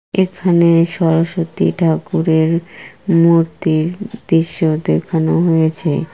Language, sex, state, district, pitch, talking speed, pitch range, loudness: Bengali, female, West Bengal, Kolkata, 165 Hz, 70 wpm, 160-175 Hz, -15 LUFS